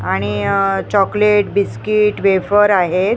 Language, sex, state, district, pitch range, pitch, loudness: Marathi, female, Maharashtra, Mumbai Suburban, 180-205 Hz, 195 Hz, -15 LUFS